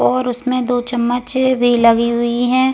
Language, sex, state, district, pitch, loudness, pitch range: Hindi, female, Goa, North and South Goa, 245 Hz, -15 LUFS, 235-255 Hz